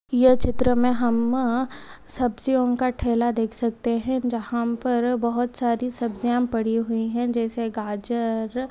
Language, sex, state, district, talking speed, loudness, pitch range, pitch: Hindi, female, Chhattisgarh, Bastar, 140 wpm, -23 LUFS, 230-250 Hz, 240 Hz